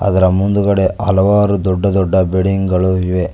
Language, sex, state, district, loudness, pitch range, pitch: Kannada, male, Karnataka, Koppal, -14 LUFS, 95-100 Hz, 95 Hz